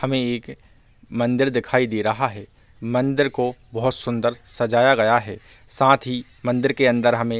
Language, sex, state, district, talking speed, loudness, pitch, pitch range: Hindi, male, Chhattisgarh, Bilaspur, 170 wpm, -20 LUFS, 120 Hz, 115-130 Hz